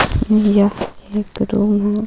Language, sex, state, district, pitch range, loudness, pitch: Hindi, female, Jharkhand, Ranchi, 205-210 Hz, -17 LUFS, 210 Hz